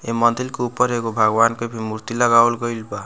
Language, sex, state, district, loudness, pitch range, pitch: Bhojpuri, male, Bihar, Muzaffarpur, -19 LUFS, 115-120 Hz, 115 Hz